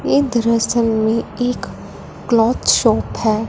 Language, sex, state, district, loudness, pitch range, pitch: Hindi, female, Punjab, Fazilka, -16 LUFS, 220-240 Hz, 230 Hz